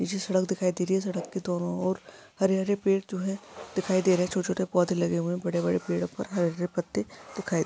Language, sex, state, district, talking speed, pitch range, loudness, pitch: Hindi, female, Andhra Pradesh, Visakhapatnam, 250 wpm, 175-190 Hz, -28 LUFS, 180 Hz